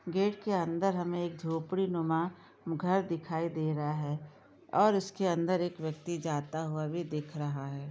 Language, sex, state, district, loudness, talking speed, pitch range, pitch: Hindi, female, Jharkhand, Jamtara, -33 LUFS, 165 wpm, 155-180 Hz, 165 Hz